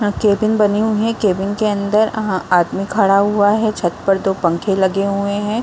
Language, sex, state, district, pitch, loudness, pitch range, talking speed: Hindi, female, Bihar, Saharsa, 205 Hz, -16 LUFS, 195-215 Hz, 245 wpm